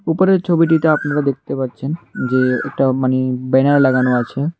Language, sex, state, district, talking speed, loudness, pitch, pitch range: Bengali, male, Tripura, West Tripura, 145 wpm, -16 LUFS, 135 Hz, 130-155 Hz